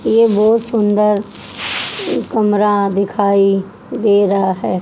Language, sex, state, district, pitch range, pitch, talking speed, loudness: Hindi, female, Haryana, Jhajjar, 200-215 Hz, 205 Hz, 100 wpm, -15 LUFS